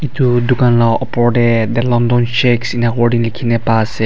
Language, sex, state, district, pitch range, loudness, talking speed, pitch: Nagamese, male, Nagaland, Dimapur, 115-120 Hz, -13 LUFS, 175 wpm, 120 Hz